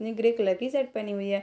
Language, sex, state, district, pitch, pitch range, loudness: Hindi, female, Bihar, Purnia, 220 Hz, 200-245 Hz, -28 LUFS